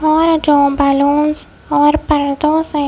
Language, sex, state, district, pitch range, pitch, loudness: Hindi, female, Madhya Pradesh, Bhopal, 285-310 Hz, 295 Hz, -13 LUFS